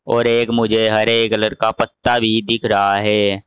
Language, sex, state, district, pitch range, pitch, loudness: Hindi, male, Uttar Pradesh, Saharanpur, 105-115 Hz, 110 Hz, -16 LUFS